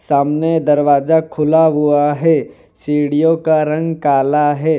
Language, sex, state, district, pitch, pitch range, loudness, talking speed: Hindi, male, Gujarat, Valsad, 150 Hz, 145-160 Hz, -14 LUFS, 125 wpm